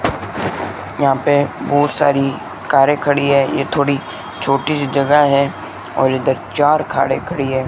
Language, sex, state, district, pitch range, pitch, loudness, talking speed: Hindi, male, Rajasthan, Bikaner, 135-145 Hz, 140 Hz, -16 LUFS, 140 wpm